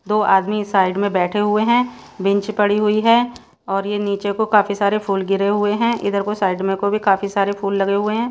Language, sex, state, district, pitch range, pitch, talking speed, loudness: Hindi, female, Odisha, Sambalpur, 195-210 Hz, 205 Hz, 240 wpm, -18 LUFS